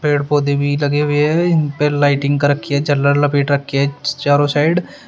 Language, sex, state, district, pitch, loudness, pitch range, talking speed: Hindi, male, Uttar Pradesh, Shamli, 145 Hz, -16 LUFS, 140-145 Hz, 200 wpm